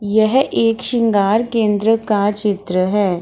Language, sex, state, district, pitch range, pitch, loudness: Hindi, female, Bihar, Samastipur, 205-225 Hz, 210 Hz, -16 LUFS